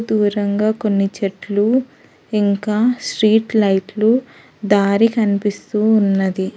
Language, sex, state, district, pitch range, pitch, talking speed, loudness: Telugu, female, Telangana, Hyderabad, 200-220 Hz, 210 Hz, 80 wpm, -17 LUFS